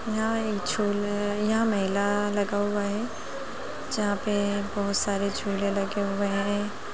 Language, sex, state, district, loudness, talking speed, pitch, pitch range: Hindi, female, Bihar, Lakhisarai, -27 LUFS, 140 wpm, 205 Hz, 200-210 Hz